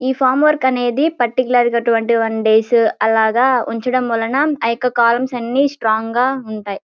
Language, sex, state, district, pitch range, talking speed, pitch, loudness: Telugu, female, Andhra Pradesh, Guntur, 225-255 Hz, 160 wpm, 240 Hz, -16 LUFS